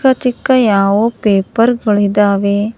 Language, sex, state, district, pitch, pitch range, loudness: Kannada, female, Karnataka, Bangalore, 210 Hz, 200-235 Hz, -13 LUFS